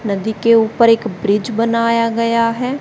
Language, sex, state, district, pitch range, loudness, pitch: Hindi, female, Haryana, Charkhi Dadri, 220-230 Hz, -15 LUFS, 230 Hz